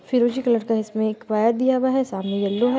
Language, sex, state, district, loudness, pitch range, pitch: Hindi, female, Bihar, Muzaffarpur, -21 LUFS, 215-250 Hz, 230 Hz